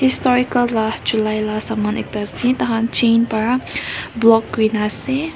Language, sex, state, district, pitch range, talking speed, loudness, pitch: Nagamese, female, Nagaland, Kohima, 220-250 Hz, 145 wpm, -17 LUFS, 225 Hz